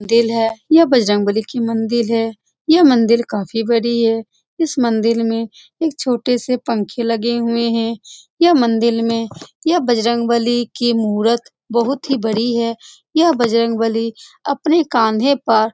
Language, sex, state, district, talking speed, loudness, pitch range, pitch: Hindi, female, Bihar, Saran, 150 wpm, -16 LUFS, 225-255 Hz, 235 Hz